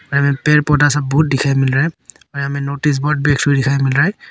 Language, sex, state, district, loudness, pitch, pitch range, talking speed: Hindi, male, Arunachal Pradesh, Papum Pare, -15 LUFS, 140 Hz, 140-150 Hz, 280 wpm